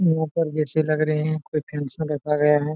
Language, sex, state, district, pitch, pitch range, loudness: Hindi, male, Jharkhand, Jamtara, 155 Hz, 150-155 Hz, -23 LUFS